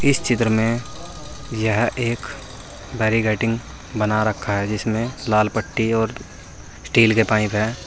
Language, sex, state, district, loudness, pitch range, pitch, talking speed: Hindi, male, Uttar Pradesh, Saharanpur, -20 LUFS, 105-115 Hz, 110 Hz, 130 wpm